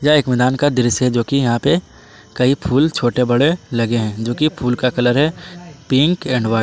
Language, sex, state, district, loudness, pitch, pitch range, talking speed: Hindi, male, Jharkhand, Palamu, -16 LUFS, 130 Hz, 120-150 Hz, 200 wpm